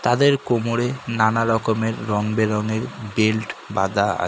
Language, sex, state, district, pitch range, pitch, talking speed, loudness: Bengali, male, West Bengal, Kolkata, 105-115 Hz, 110 Hz, 125 wpm, -21 LUFS